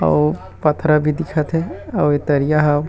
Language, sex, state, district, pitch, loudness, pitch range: Chhattisgarhi, male, Chhattisgarh, Rajnandgaon, 150 Hz, -18 LUFS, 145-155 Hz